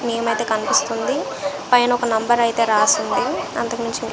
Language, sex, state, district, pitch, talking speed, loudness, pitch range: Telugu, female, Andhra Pradesh, Visakhapatnam, 230 Hz, 145 wpm, -19 LUFS, 225-240 Hz